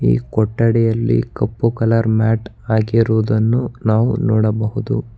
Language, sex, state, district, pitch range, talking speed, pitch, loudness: Kannada, male, Karnataka, Bangalore, 110-115 Hz, 95 wpm, 110 Hz, -17 LUFS